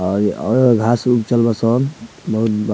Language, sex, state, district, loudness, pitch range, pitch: Bhojpuri, male, Bihar, Muzaffarpur, -16 LUFS, 110-125 Hz, 115 Hz